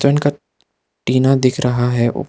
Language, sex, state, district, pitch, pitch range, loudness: Hindi, male, Arunachal Pradesh, Lower Dibang Valley, 130 Hz, 125-140 Hz, -16 LUFS